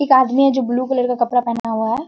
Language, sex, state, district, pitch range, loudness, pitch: Hindi, female, Bihar, Kishanganj, 235-265 Hz, -17 LUFS, 250 Hz